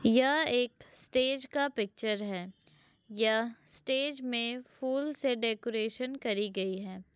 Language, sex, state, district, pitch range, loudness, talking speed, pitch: Hindi, female, Uttar Pradesh, Hamirpur, 215-260 Hz, -32 LUFS, 125 wpm, 235 Hz